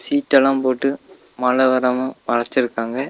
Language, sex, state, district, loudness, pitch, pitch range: Tamil, male, Tamil Nadu, Nilgiris, -18 LUFS, 130 Hz, 125-135 Hz